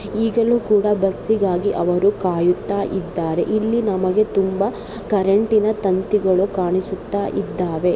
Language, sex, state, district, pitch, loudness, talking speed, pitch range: Kannada, female, Karnataka, Dakshina Kannada, 195 Hz, -19 LUFS, 100 wpm, 185-210 Hz